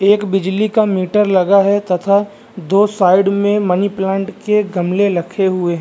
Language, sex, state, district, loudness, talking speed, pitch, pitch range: Hindi, male, Bihar, Vaishali, -14 LUFS, 165 wpm, 195 Hz, 185-205 Hz